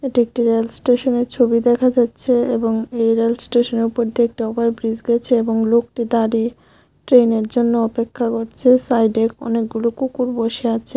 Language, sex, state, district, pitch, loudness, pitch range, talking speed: Bengali, female, Tripura, West Tripura, 235 Hz, -17 LUFS, 230-245 Hz, 155 wpm